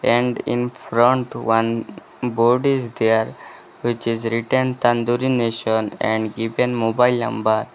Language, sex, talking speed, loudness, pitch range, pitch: English, male, 125 wpm, -20 LUFS, 115-125 Hz, 115 Hz